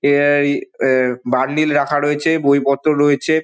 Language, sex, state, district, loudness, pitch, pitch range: Bengali, male, West Bengal, Dakshin Dinajpur, -16 LUFS, 145 Hz, 140-150 Hz